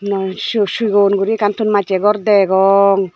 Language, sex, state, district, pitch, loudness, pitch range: Chakma, female, Tripura, Dhalai, 200 Hz, -14 LUFS, 195-210 Hz